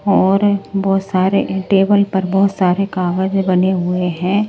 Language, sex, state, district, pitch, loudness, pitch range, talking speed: Hindi, male, Delhi, New Delhi, 195 Hz, -15 LUFS, 185-195 Hz, 145 wpm